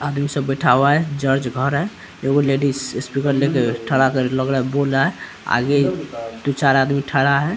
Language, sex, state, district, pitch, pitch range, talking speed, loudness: Hindi, male, Bihar, Araria, 135 Hz, 130-140 Hz, 175 wpm, -19 LUFS